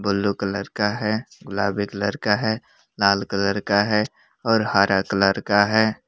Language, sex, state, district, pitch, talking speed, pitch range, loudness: Hindi, male, Jharkhand, Palamu, 100 Hz, 170 wpm, 100-105 Hz, -21 LUFS